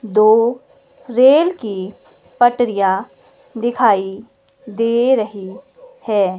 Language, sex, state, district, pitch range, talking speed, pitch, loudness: Hindi, female, Himachal Pradesh, Shimla, 200-245 Hz, 75 wpm, 230 Hz, -16 LUFS